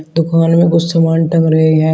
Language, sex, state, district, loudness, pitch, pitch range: Hindi, male, Uttar Pradesh, Shamli, -12 LUFS, 165 Hz, 160-165 Hz